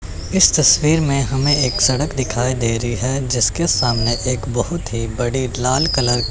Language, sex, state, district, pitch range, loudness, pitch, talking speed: Hindi, male, Chandigarh, Chandigarh, 115-130 Hz, -17 LUFS, 120 Hz, 180 wpm